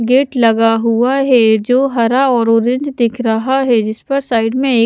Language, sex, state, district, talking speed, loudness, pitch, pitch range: Hindi, female, Haryana, Jhajjar, 200 wpm, -13 LUFS, 240 Hz, 230-265 Hz